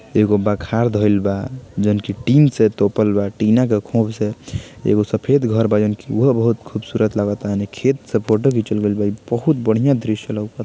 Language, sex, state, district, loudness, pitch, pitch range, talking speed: Bhojpuri, male, Bihar, Gopalganj, -18 LUFS, 110 Hz, 105-120 Hz, 205 wpm